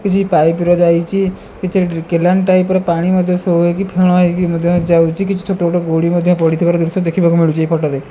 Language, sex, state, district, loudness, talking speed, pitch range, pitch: Odia, female, Odisha, Malkangiri, -14 LUFS, 200 wpm, 170-185 Hz, 175 Hz